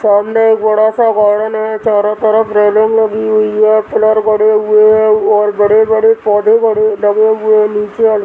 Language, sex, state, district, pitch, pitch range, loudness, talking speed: Hindi, female, Bihar, Muzaffarpur, 215 Hz, 210-220 Hz, -10 LUFS, 180 wpm